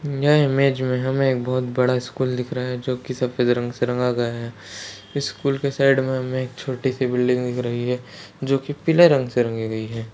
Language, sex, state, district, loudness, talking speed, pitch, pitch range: Marathi, male, Maharashtra, Sindhudurg, -21 LUFS, 225 wpm, 125 Hz, 120-135 Hz